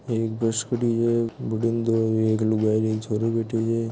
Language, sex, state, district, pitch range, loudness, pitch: Hindi, male, Rajasthan, Nagaur, 110-115 Hz, -24 LUFS, 115 Hz